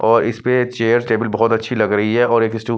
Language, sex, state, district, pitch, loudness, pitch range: Hindi, male, Chandigarh, Chandigarh, 115 Hz, -16 LUFS, 110-120 Hz